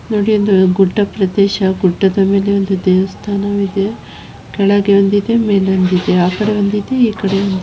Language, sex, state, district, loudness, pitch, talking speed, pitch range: Kannada, female, Karnataka, Shimoga, -14 LUFS, 200 Hz, 125 wpm, 190-205 Hz